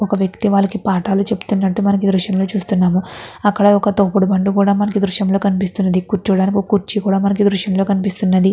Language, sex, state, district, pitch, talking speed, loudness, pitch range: Telugu, female, Andhra Pradesh, Guntur, 195 Hz, 210 wpm, -16 LUFS, 190-205 Hz